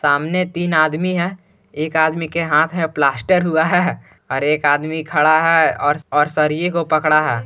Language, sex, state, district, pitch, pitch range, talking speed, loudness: Hindi, male, Jharkhand, Garhwa, 155 Hz, 150-165 Hz, 175 wpm, -17 LUFS